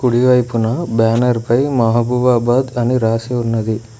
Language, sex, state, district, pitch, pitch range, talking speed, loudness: Telugu, male, Telangana, Mahabubabad, 120 Hz, 115-125 Hz, 105 wpm, -15 LUFS